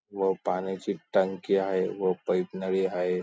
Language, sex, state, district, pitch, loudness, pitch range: Marathi, male, Maharashtra, Sindhudurg, 95 Hz, -28 LUFS, 90-95 Hz